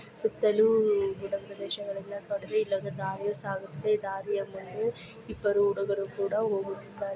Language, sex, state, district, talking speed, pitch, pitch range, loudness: Kannada, female, Karnataka, Chamarajanagar, 135 wpm, 200 Hz, 195-210 Hz, -30 LUFS